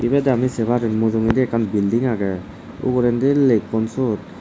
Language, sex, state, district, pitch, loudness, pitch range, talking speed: Chakma, male, Tripura, Dhalai, 115 Hz, -19 LUFS, 110-125 Hz, 150 wpm